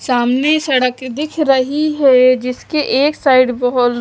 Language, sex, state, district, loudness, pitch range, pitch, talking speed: Hindi, female, Haryana, Charkhi Dadri, -14 LUFS, 250-300 Hz, 260 Hz, 150 wpm